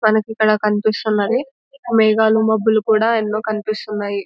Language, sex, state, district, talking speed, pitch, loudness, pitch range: Telugu, female, Telangana, Nalgonda, 100 wpm, 215 Hz, -17 LUFS, 215-220 Hz